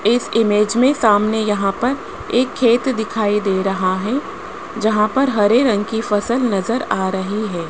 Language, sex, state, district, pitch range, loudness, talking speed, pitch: Hindi, male, Rajasthan, Jaipur, 205-245 Hz, -17 LUFS, 170 wpm, 220 Hz